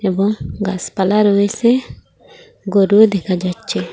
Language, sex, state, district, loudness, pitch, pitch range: Bengali, female, Assam, Hailakandi, -16 LUFS, 200 Hz, 190-220 Hz